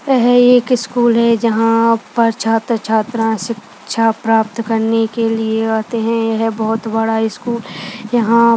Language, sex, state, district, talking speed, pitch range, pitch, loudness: Hindi, female, Maharashtra, Chandrapur, 155 wpm, 225-235 Hz, 225 Hz, -15 LUFS